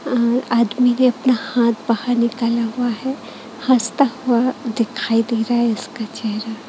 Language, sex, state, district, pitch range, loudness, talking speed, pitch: Hindi, female, Chhattisgarh, Raipur, 230-255 Hz, -19 LUFS, 150 wpm, 235 Hz